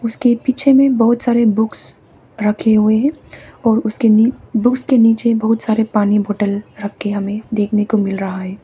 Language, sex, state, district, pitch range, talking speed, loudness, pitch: Hindi, female, Arunachal Pradesh, Papum Pare, 210-235 Hz, 180 wpm, -15 LUFS, 220 Hz